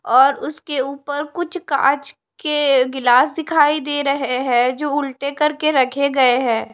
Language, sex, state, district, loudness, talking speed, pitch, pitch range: Hindi, female, Punjab, Pathankot, -18 LUFS, 150 wpm, 280 Hz, 265-295 Hz